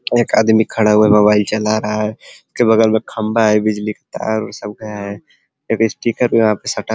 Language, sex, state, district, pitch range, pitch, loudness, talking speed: Hindi, male, Uttar Pradesh, Ghazipur, 105-110 Hz, 110 Hz, -15 LUFS, 225 wpm